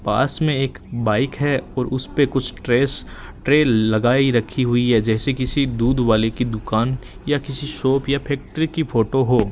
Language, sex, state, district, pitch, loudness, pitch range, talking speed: Hindi, male, Rajasthan, Bikaner, 130 Hz, -20 LUFS, 115-140 Hz, 175 wpm